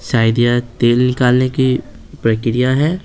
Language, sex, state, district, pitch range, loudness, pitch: Hindi, male, Bihar, Patna, 120-130 Hz, -15 LUFS, 125 Hz